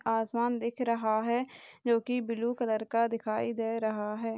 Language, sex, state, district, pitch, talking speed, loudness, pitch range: Hindi, female, Bihar, Darbhanga, 230 Hz, 180 wpm, -31 LUFS, 225-235 Hz